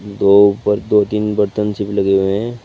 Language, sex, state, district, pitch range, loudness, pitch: Hindi, male, Uttar Pradesh, Shamli, 100-105 Hz, -15 LUFS, 105 Hz